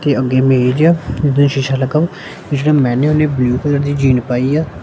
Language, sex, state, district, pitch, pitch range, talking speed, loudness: Punjabi, male, Punjab, Kapurthala, 140 Hz, 130-150 Hz, 210 wpm, -14 LUFS